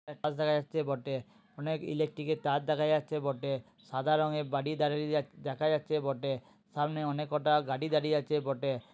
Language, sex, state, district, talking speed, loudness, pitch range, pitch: Bengali, male, West Bengal, Jhargram, 160 wpm, -32 LUFS, 140-155 Hz, 150 Hz